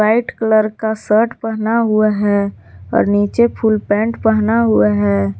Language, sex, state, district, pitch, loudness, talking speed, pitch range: Hindi, female, Jharkhand, Garhwa, 215 Hz, -15 LUFS, 155 wpm, 205-225 Hz